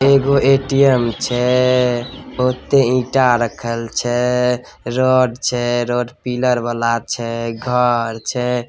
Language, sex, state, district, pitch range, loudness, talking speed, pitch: Maithili, male, Bihar, Samastipur, 120-130 Hz, -17 LUFS, 105 wpm, 125 Hz